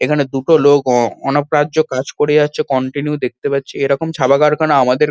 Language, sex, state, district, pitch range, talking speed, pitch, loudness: Bengali, male, West Bengal, Kolkata, 135-150 Hz, 175 wpm, 145 Hz, -15 LUFS